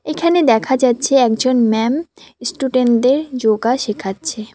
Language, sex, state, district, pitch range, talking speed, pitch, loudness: Bengali, female, West Bengal, Cooch Behar, 225-270 Hz, 105 wpm, 250 Hz, -16 LUFS